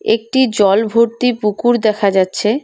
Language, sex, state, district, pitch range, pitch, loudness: Bengali, female, West Bengal, Cooch Behar, 210-240 Hz, 225 Hz, -14 LUFS